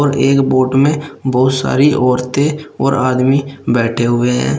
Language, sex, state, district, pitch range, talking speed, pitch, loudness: Hindi, male, Uttar Pradesh, Shamli, 125-140 Hz, 155 wpm, 130 Hz, -14 LUFS